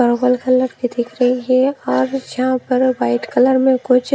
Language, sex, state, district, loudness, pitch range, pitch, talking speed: Hindi, female, Himachal Pradesh, Shimla, -16 LUFS, 245-255 Hz, 250 Hz, 190 wpm